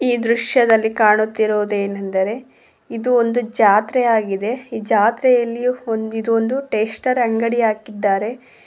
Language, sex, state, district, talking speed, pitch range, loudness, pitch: Kannada, female, Karnataka, Koppal, 110 wpm, 215-240 Hz, -18 LUFS, 225 Hz